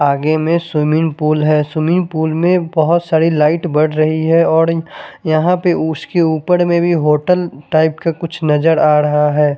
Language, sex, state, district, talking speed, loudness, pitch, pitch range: Hindi, male, Chandigarh, Chandigarh, 180 wpm, -14 LUFS, 160 Hz, 155-170 Hz